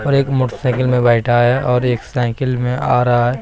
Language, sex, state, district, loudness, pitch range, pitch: Hindi, male, Bihar, Katihar, -16 LUFS, 120-130 Hz, 125 Hz